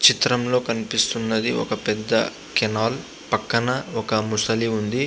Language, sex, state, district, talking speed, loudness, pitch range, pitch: Telugu, male, Andhra Pradesh, Visakhapatnam, 120 wpm, -22 LUFS, 110-125 Hz, 115 Hz